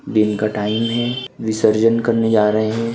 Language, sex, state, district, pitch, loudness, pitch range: Hindi, male, Bihar, Muzaffarpur, 110 Hz, -17 LUFS, 110-115 Hz